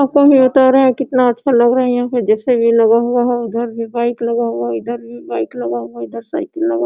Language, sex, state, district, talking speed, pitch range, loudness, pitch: Hindi, female, Jharkhand, Sahebganj, 270 wpm, 230-260 Hz, -15 LUFS, 240 Hz